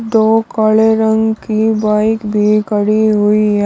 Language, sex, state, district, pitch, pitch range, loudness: Hindi, male, Uttar Pradesh, Shamli, 215 Hz, 210-220 Hz, -13 LUFS